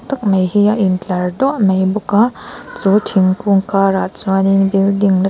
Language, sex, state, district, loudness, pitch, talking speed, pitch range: Mizo, female, Mizoram, Aizawl, -14 LUFS, 195 Hz, 170 wpm, 190-205 Hz